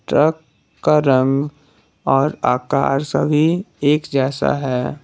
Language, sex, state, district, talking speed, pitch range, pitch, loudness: Hindi, male, Jharkhand, Garhwa, 105 wpm, 135-150 Hz, 145 Hz, -18 LUFS